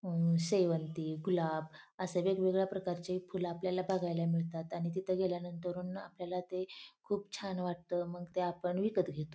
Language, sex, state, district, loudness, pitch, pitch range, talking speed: Marathi, female, Maharashtra, Pune, -36 LUFS, 180 Hz, 170-185 Hz, 160 wpm